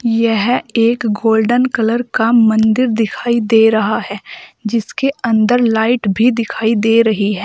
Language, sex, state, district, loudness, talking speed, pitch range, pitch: Hindi, female, Uttar Pradesh, Saharanpur, -14 LUFS, 145 wpm, 220-235 Hz, 225 Hz